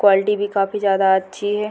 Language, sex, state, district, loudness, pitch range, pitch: Hindi, female, Bihar, Purnia, -18 LUFS, 195-205 Hz, 200 Hz